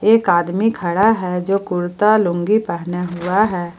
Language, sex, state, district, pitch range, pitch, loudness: Hindi, female, Jharkhand, Ranchi, 175-215 Hz, 180 Hz, -17 LUFS